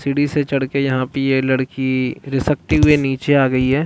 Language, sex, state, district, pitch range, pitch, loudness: Hindi, male, Chhattisgarh, Balrampur, 130-140 Hz, 135 Hz, -17 LUFS